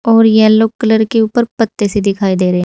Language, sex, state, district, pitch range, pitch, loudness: Hindi, female, Uttar Pradesh, Saharanpur, 205-225 Hz, 220 Hz, -12 LUFS